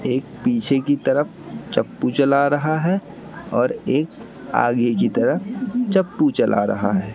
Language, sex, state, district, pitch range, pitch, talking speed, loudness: Hindi, male, Madhya Pradesh, Katni, 120-190 Hz, 145 Hz, 145 wpm, -20 LUFS